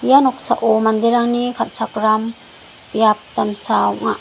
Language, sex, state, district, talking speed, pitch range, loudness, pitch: Garo, female, Meghalaya, West Garo Hills, 100 wpm, 215-240 Hz, -17 LUFS, 225 Hz